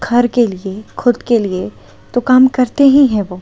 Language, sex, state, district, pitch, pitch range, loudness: Hindi, female, Delhi, New Delhi, 235 Hz, 190-250 Hz, -13 LUFS